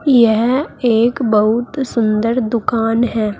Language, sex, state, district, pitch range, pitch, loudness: Hindi, female, Uttar Pradesh, Saharanpur, 225-250 Hz, 235 Hz, -15 LUFS